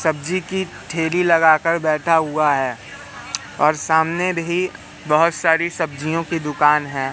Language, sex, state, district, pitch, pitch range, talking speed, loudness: Hindi, male, Madhya Pradesh, Katni, 160 Hz, 150-170 Hz, 145 wpm, -19 LUFS